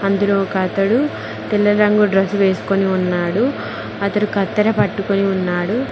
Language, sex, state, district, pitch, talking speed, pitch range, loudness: Telugu, female, Telangana, Mahabubabad, 200 Hz, 120 wpm, 195-210 Hz, -17 LUFS